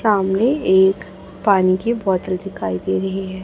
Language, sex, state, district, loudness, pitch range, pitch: Hindi, female, Chhattisgarh, Raipur, -18 LUFS, 185-200 Hz, 190 Hz